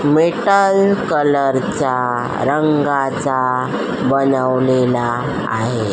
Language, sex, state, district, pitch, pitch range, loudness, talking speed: Marathi, female, Maharashtra, Solapur, 135 Hz, 125-150 Hz, -16 LUFS, 50 wpm